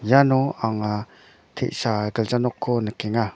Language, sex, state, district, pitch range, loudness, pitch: Garo, male, Meghalaya, North Garo Hills, 105-125 Hz, -23 LUFS, 115 Hz